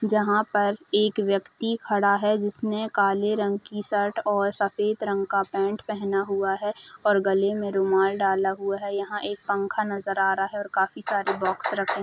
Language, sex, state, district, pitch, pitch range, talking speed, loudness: Hindi, female, Uttar Pradesh, Jalaun, 200 Hz, 195-210 Hz, 195 wpm, -25 LUFS